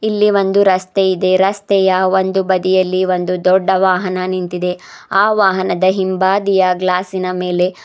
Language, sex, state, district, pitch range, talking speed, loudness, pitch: Kannada, female, Karnataka, Bidar, 185-190 Hz, 130 wpm, -14 LUFS, 185 Hz